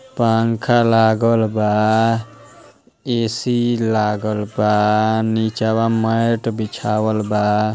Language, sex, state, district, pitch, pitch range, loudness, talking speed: Bhojpuri, male, Uttar Pradesh, Ghazipur, 110 Hz, 105-115 Hz, -17 LUFS, 75 wpm